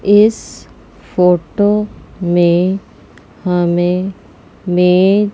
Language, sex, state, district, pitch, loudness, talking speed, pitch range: Hindi, female, Chandigarh, Chandigarh, 180 Hz, -14 LUFS, 65 wpm, 175-205 Hz